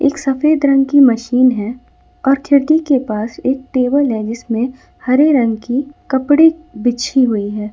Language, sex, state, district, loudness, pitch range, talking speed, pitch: Hindi, female, Jharkhand, Ranchi, -14 LUFS, 240-280 Hz, 165 wpm, 260 Hz